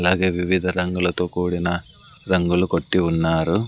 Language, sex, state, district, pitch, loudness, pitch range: Telugu, male, Andhra Pradesh, Sri Satya Sai, 90 Hz, -21 LUFS, 85-90 Hz